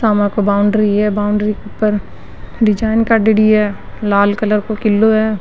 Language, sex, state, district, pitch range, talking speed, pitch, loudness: Rajasthani, female, Rajasthan, Nagaur, 205-215 Hz, 155 wpm, 210 Hz, -14 LUFS